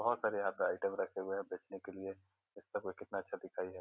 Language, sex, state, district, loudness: Hindi, male, Bihar, Gopalganj, -41 LUFS